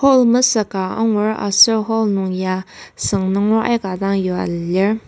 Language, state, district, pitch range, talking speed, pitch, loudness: Ao, Nagaland, Kohima, 190-225 Hz, 155 wpm, 200 Hz, -17 LUFS